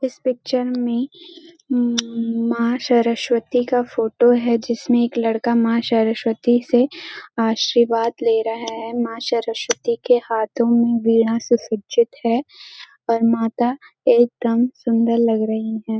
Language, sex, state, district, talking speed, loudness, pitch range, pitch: Hindi, female, Uttarakhand, Uttarkashi, 130 wpm, -19 LUFS, 230-245 Hz, 235 Hz